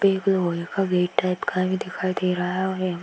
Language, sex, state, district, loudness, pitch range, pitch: Hindi, female, Uttar Pradesh, Hamirpur, -24 LUFS, 180-190 Hz, 185 Hz